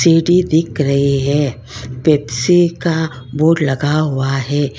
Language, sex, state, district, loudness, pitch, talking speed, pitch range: Hindi, female, Karnataka, Bangalore, -15 LUFS, 145 Hz, 125 wpm, 135-160 Hz